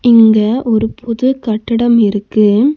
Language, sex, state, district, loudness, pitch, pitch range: Tamil, female, Tamil Nadu, Nilgiris, -12 LUFS, 230 Hz, 215-240 Hz